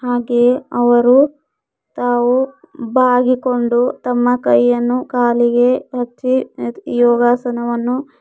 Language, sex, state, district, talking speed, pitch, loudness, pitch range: Kannada, female, Karnataka, Bidar, 75 wpm, 245 Hz, -15 LUFS, 240-255 Hz